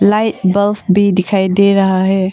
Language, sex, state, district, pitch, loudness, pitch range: Hindi, female, Arunachal Pradesh, Longding, 195 Hz, -13 LUFS, 190-205 Hz